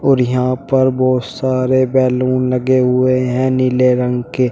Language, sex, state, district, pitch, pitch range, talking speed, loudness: Hindi, male, Uttar Pradesh, Shamli, 130 Hz, 125-130 Hz, 160 wpm, -15 LUFS